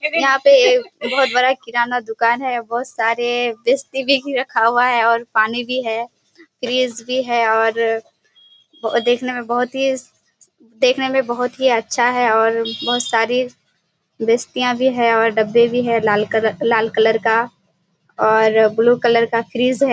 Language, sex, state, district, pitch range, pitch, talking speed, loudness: Hindi, female, Bihar, Kishanganj, 225-255 Hz, 240 Hz, 150 wpm, -17 LUFS